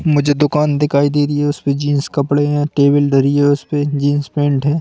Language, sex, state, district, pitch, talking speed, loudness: Hindi, male, Madhya Pradesh, Bhopal, 145 Hz, 210 wpm, -15 LUFS